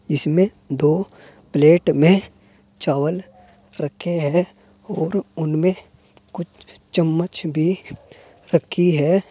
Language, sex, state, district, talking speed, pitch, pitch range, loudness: Hindi, male, Uttar Pradesh, Saharanpur, 90 wpm, 165 Hz, 150-185 Hz, -19 LUFS